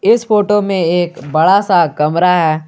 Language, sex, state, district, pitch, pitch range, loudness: Hindi, male, Jharkhand, Garhwa, 175 Hz, 160-200 Hz, -13 LUFS